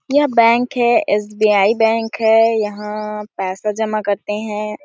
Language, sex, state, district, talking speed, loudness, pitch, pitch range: Hindi, female, Chhattisgarh, Sarguja, 160 wpm, -16 LUFS, 215 Hz, 210-230 Hz